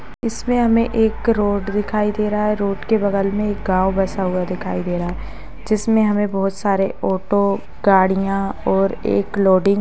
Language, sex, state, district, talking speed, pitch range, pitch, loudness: Hindi, female, Maharashtra, Sindhudurg, 185 wpm, 195-215 Hz, 200 Hz, -19 LUFS